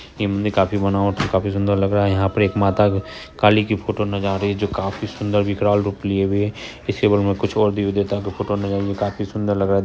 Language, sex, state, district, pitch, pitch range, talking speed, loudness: Hindi, female, Bihar, Purnia, 100 Hz, 100-105 Hz, 245 wpm, -20 LUFS